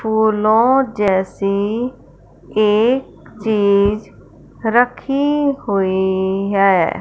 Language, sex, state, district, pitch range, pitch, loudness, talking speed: Hindi, female, Punjab, Fazilka, 195-245 Hz, 215 Hz, -16 LUFS, 60 wpm